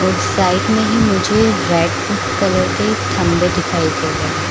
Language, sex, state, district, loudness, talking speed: Hindi, female, Chhattisgarh, Balrampur, -15 LUFS, 175 wpm